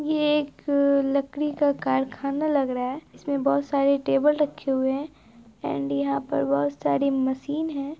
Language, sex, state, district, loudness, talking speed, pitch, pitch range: Hindi, female, Bihar, Araria, -25 LUFS, 165 wpm, 275 Hz, 250-290 Hz